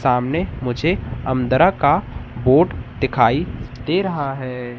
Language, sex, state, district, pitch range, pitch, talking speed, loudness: Hindi, male, Madhya Pradesh, Katni, 125-150 Hz, 130 Hz, 115 wpm, -19 LUFS